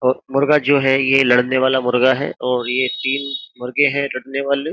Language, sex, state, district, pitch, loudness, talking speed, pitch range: Hindi, male, Uttar Pradesh, Jyotiba Phule Nagar, 135 Hz, -17 LUFS, 205 wpm, 130-140 Hz